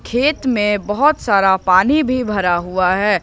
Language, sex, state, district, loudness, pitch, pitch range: Hindi, male, Jharkhand, Ranchi, -15 LUFS, 205 Hz, 190-255 Hz